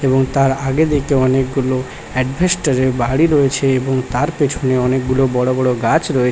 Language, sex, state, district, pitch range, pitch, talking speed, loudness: Bengali, male, West Bengal, Paschim Medinipur, 130-140 Hz, 130 Hz, 160 wpm, -16 LUFS